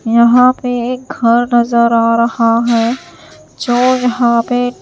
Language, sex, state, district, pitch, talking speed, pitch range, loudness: Hindi, female, Himachal Pradesh, Shimla, 240 Hz, 135 wpm, 235-245 Hz, -12 LUFS